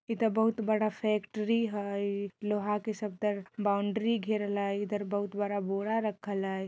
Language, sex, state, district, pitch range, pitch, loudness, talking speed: Bajjika, female, Bihar, Vaishali, 200-215 Hz, 210 Hz, -32 LUFS, 155 wpm